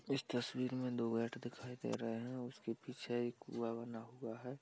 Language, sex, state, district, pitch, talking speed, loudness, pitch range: Hindi, male, Uttar Pradesh, Budaun, 120 Hz, 205 wpm, -43 LUFS, 115-125 Hz